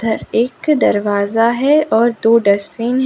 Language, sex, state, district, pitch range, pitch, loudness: Hindi, female, Gujarat, Valsad, 220-255 Hz, 230 Hz, -14 LUFS